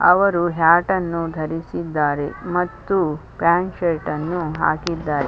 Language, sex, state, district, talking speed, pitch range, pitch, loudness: Kannada, female, Karnataka, Chamarajanagar, 90 wpm, 155-175 Hz, 170 Hz, -20 LUFS